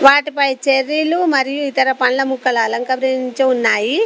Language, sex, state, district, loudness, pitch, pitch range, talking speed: Telugu, female, Telangana, Komaram Bheem, -16 LUFS, 265 Hz, 255-280 Hz, 120 wpm